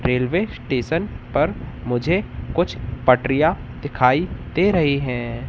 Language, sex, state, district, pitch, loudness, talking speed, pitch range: Hindi, male, Madhya Pradesh, Katni, 130 Hz, -21 LUFS, 110 wpm, 125-165 Hz